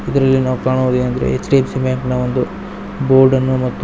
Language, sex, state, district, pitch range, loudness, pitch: Kannada, male, Karnataka, Bangalore, 125-130 Hz, -15 LUFS, 130 Hz